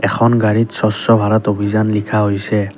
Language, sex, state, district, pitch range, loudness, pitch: Assamese, male, Assam, Kamrup Metropolitan, 105-110 Hz, -15 LUFS, 105 Hz